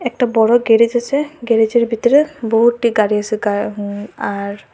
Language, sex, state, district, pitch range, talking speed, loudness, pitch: Bengali, female, Assam, Hailakandi, 210-240 Hz, 150 wpm, -16 LUFS, 230 Hz